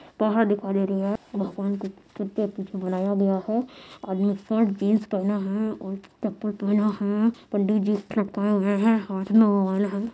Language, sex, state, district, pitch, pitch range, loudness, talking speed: Hindi, female, Bihar, Madhepura, 205 Hz, 195-215 Hz, -25 LUFS, 150 wpm